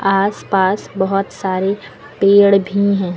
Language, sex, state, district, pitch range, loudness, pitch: Hindi, female, Uttar Pradesh, Lucknow, 190-200 Hz, -15 LUFS, 195 Hz